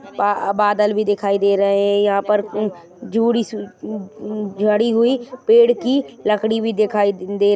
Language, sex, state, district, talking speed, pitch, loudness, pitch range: Kumaoni, female, Uttarakhand, Tehri Garhwal, 135 wpm, 210 Hz, -18 LUFS, 200-225 Hz